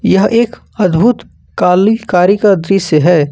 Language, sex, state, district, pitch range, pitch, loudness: Hindi, male, Jharkhand, Ranchi, 180-215 Hz, 195 Hz, -11 LUFS